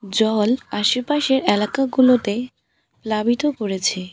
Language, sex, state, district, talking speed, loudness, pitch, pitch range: Bengali, female, West Bengal, Alipurduar, 75 wpm, -19 LUFS, 225 Hz, 210-260 Hz